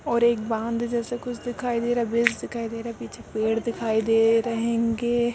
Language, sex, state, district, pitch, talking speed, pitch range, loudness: Hindi, female, Uttar Pradesh, Etah, 235 Hz, 200 wpm, 230-240 Hz, -25 LUFS